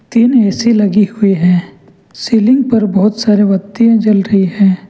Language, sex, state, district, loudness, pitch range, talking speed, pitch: Hindi, male, Jharkhand, Ranchi, -11 LUFS, 195-230 Hz, 170 wpm, 210 Hz